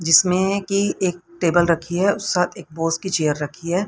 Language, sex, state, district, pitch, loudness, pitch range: Hindi, female, Haryana, Rohtak, 180 Hz, -20 LUFS, 165-190 Hz